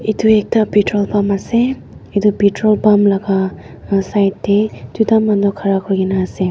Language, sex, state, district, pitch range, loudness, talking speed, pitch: Nagamese, female, Nagaland, Dimapur, 195-215 Hz, -15 LUFS, 145 wpm, 205 Hz